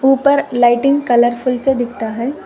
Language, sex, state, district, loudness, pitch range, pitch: Hindi, female, Telangana, Hyderabad, -14 LUFS, 240-270 Hz, 255 Hz